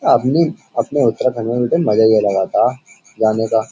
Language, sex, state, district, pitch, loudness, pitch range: Hindi, male, Uttar Pradesh, Jyotiba Phule Nagar, 110 Hz, -16 LUFS, 110-120 Hz